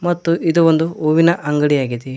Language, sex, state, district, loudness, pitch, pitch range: Kannada, male, Karnataka, Koppal, -15 LUFS, 160 Hz, 150-165 Hz